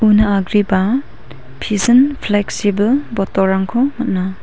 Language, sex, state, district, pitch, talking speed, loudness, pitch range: Garo, female, Meghalaya, West Garo Hills, 205 Hz, 80 wpm, -15 LUFS, 195-245 Hz